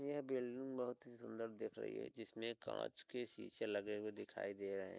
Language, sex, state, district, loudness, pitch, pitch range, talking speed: Hindi, male, Uttar Pradesh, Hamirpur, -47 LUFS, 115 Hz, 105-125 Hz, 215 wpm